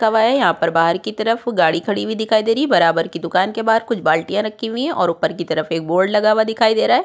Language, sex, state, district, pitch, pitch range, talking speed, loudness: Hindi, female, Uttarakhand, Tehri Garhwal, 210 Hz, 170-225 Hz, 300 wpm, -17 LUFS